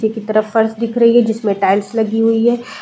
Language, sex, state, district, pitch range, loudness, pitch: Hindi, female, Uttar Pradesh, Deoria, 215-230 Hz, -15 LUFS, 225 Hz